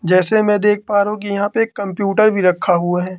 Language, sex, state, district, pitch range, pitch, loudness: Hindi, male, Madhya Pradesh, Katni, 185-210 Hz, 200 Hz, -16 LUFS